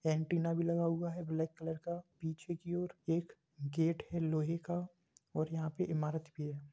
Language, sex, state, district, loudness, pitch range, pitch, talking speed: Hindi, male, Uttar Pradesh, Jalaun, -38 LUFS, 160-170 Hz, 165 Hz, 195 wpm